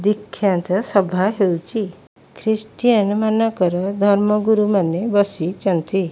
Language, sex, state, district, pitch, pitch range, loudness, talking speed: Odia, female, Odisha, Malkangiri, 200 Hz, 185-215 Hz, -18 LUFS, 80 wpm